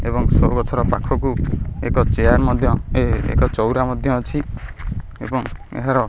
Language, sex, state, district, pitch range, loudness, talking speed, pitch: Odia, male, Odisha, Khordha, 115-130 Hz, -19 LUFS, 155 wpm, 125 Hz